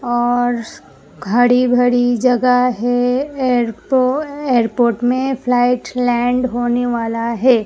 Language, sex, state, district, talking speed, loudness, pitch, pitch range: Hindi, female, Gujarat, Gandhinagar, 100 wpm, -16 LUFS, 245 Hz, 240-250 Hz